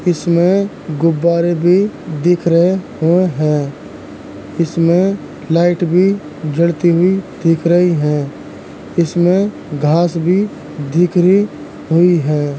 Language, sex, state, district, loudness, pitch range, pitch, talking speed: Hindi, male, Uttar Pradesh, Jalaun, -14 LUFS, 160-180 Hz, 170 Hz, 90 wpm